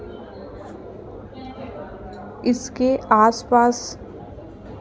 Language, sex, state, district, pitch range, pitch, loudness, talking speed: Hindi, female, Rajasthan, Jaipur, 240-255 Hz, 240 Hz, -19 LUFS, 35 wpm